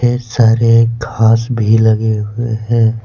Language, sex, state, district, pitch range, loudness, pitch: Hindi, male, Jharkhand, Deoghar, 110-115 Hz, -13 LUFS, 115 Hz